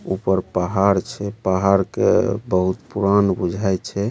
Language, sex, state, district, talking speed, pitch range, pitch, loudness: Maithili, male, Bihar, Supaul, 130 wpm, 95-100 Hz, 95 Hz, -20 LUFS